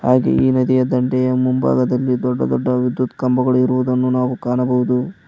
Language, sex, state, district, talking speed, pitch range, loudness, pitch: Kannada, male, Karnataka, Koppal, 135 wpm, 125-130 Hz, -17 LUFS, 125 Hz